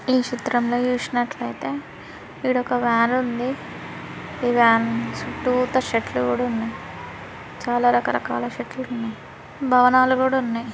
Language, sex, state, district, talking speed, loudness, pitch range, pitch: Telugu, female, Andhra Pradesh, Srikakulam, 115 wpm, -22 LUFS, 230-255 Hz, 245 Hz